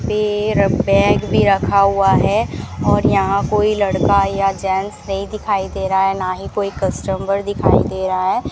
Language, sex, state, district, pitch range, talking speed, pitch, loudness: Hindi, female, Rajasthan, Bikaner, 190-205 Hz, 175 wpm, 195 Hz, -17 LUFS